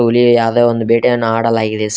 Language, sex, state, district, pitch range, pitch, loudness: Kannada, male, Karnataka, Koppal, 115-120 Hz, 115 Hz, -13 LUFS